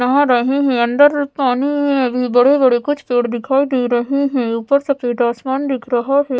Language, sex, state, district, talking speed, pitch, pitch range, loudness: Hindi, female, Odisha, Sambalpur, 195 wpm, 260 Hz, 245-280 Hz, -16 LUFS